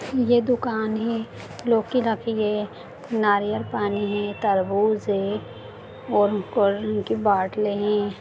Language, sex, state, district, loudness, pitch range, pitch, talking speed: Hindi, female, Bihar, Darbhanga, -23 LUFS, 205-225 Hz, 210 Hz, 130 wpm